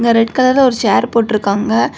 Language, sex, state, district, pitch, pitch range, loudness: Tamil, female, Tamil Nadu, Kanyakumari, 230 Hz, 215-245 Hz, -13 LUFS